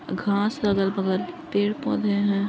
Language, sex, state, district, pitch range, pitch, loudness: Hindi, female, Uttar Pradesh, Muzaffarnagar, 195-205 Hz, 200 Hz, -24 LUFS